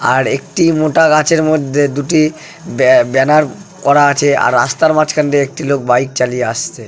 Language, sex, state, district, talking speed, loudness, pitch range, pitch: Bengali, male, West Bengal, Jalpaiguri, 175 wpm, -12 LUFS, 135-155 Hz, 145 Hz